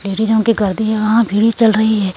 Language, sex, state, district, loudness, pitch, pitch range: Hindi, female, Maharashtra, Gondia, -14 LUFS, 220 Hz, 210-220 Hz